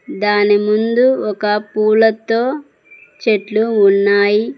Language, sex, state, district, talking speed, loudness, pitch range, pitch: Telugu, female, Telangana, Mahabubabad, 80 wpm, -14 LUFS, 205-225 Hz, 215 Hz